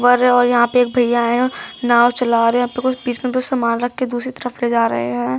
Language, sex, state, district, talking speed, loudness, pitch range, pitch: Hindi, female, Bihar, Darbhanga, 210 wpm, -17 LUFS, 235-250 Hz, 245 Hz